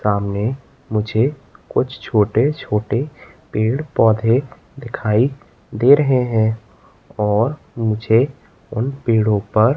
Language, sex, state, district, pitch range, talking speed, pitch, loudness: Hindi, male, Madhya Pradesh, Katni, 110-130 Hz, 100 wpm, 115 Hz, -18 LUFS